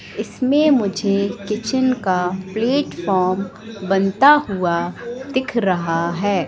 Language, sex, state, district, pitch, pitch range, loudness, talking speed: Hindi, female, Madhya Pradesh, Katni, 200 Hz, 185-255 Hz, -19 LUFS, 95 wpm